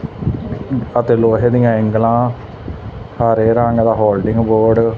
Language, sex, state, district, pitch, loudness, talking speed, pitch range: Punjabi, male, Punjab, Fazilka, 115 Hz, -14 LUFS, 120 wpm, 110-120 Hz